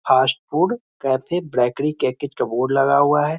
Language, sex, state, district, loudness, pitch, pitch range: Hindi, male, Bihar, Muzaffarpur, -20 LUFS, 140 Hz, 130-150 Hz